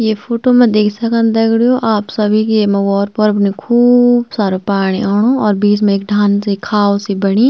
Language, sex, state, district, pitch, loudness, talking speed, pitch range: Garhwali, female, Uttarakhand, Tehri Garhwal, 210 Hz, -13 LUFS, 210 wpm, 200-230 Hz